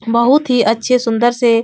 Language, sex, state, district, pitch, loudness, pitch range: Hindi, female, Uttar Pradesh, Etah, 235 Hz, -13 LUFS, 230-250 Hz